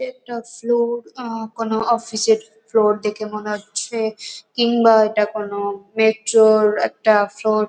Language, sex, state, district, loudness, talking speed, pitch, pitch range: Bengali, female, West Bengal, North 24 Parganas, -19 LUFS, 140 wpm, 220 Hz, 210-230 Hz